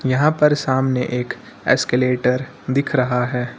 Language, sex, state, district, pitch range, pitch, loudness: Hindi, male, Uttar Pradesh, Lucknow, 125-135 Hz, 130 Hz, -19 LUFS